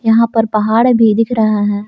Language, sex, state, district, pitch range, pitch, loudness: Hindi, male, Jharkhand, Palamu, 215-230 Hz, 225 Hz, -12 LUFS